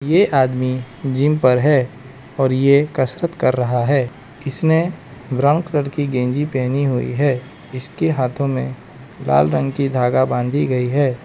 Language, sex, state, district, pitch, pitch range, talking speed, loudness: Hindi, male, Arunachal Pradesh, Lower Dibang Valley, 135 Hz, 130-145 Hz, 155 wpm, -18 LUFS